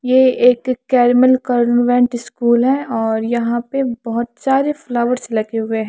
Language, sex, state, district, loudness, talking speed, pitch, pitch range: Hindi, female, Chandigarh, Chandigarh, -16 LUFS, 155 wpm, 245 Hz, 235-255 Hz